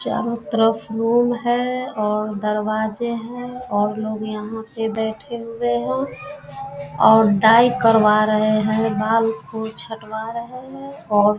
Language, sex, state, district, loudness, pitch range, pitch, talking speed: Hindi, female, Bihar, Vaishali, -20 LUFS, 215-235 Hz, 220 Hz, 130 wpm